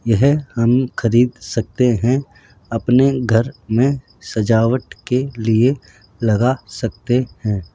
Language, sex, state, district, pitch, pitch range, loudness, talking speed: Hindi, male, Rajasthan, Jaipur, 115 Hz, 110-130 Hz, -18 LUFS, 110 wpm